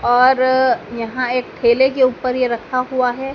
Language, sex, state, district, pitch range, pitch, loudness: Hindi, female, Madhya Pradesh, Dhar, 245-260 Hz, 255 Hz, -17 LUFS